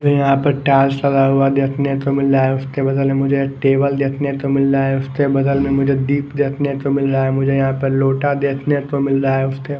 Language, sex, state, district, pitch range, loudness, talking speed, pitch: Hindi, male, Maharashtra, Mumbai Suburban, 135-140 Hz, -16 LUFS, 255 wpm, 135 Hz